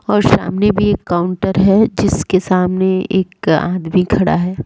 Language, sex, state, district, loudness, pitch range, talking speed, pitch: Hindi, female, Bihar, Sitamarhi, -14 LUFS, 180-200 Hz, 155 wpm, 185 Hz